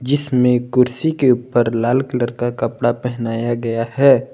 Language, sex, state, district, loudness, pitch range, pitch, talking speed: Hindi, male, Jharkhand, Palamu, -17 LUFS, 120-130 Hz, 125 Hz, 150 wpm